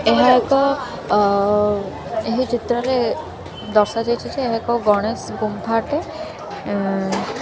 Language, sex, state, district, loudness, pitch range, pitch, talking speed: Odia, female, Odisha, Khordha, -19 LUFS, 205-240 Hz, 225 Hz, 105 wpm